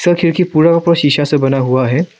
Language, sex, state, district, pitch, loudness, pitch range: Hindi, male, Arunachal Pradesh, Lower Dibang Valley, 160 Hz, -12 LUFS, 135-170 Hz